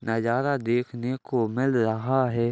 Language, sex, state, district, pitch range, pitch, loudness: Hindi, male, Uttar Pradesh, Ghazipur, 115-130 Hz, 120 Hz, -25 LUFS